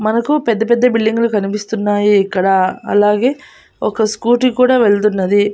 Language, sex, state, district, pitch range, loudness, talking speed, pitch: Telugu, female, Andhra Pradesh, Annamaya, 205-240 Hz, -14 LUFS, 120 wpm, 220 Hz